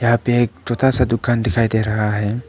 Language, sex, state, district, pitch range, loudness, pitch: Hindi, male, Arunachal Pradesh, Papum Pare, 110-120 Hz, -18 LUFS, 115 Hz